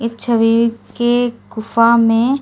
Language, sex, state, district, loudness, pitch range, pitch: Hindi, female, Delhi, New Delhi, -15 LUFS, 230-240 Hz, 230 Hz